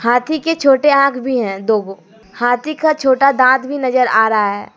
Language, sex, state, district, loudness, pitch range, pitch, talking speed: Hindi, female, Jharkhand, Deoghar, -14 LUFS, 220-275 Hz, 255 Hz, 215 wpm